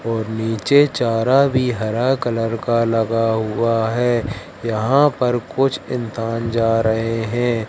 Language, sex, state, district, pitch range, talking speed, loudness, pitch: Hindi, male, Madhya Pradesh, Katni, 115-125 Hz, 135 wpm, -18 LUFS, 115 Hz